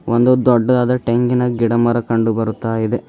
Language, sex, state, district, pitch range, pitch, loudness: Kannada, male, Karnataka, Bidar, 115-125 Hz, 120 Hz, -16 LUFS